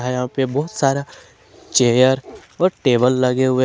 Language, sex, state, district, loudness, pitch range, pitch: Hindi, male, Jharkhand, Ranchi, -18 LUFS, 125-140 Hz, 130 Hz